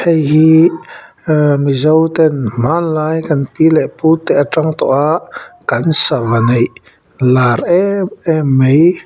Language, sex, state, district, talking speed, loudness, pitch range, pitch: Mizo, male, Mizoram, Aizawl, 125 wpm, -12 LUFS, 140-160 Hz, 155 Hz